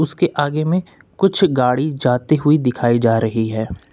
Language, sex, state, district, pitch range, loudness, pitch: Hindi, male, Uttar Pradesh, Lucknow, 120-155 Hz, -17 LUFS, 140 Hz